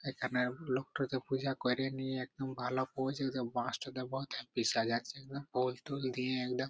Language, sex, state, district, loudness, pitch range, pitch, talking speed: Bengali, male, West Bengal, Purulia, -37 LUFS, 125-135 Hz, 130 Hz, 105 wpm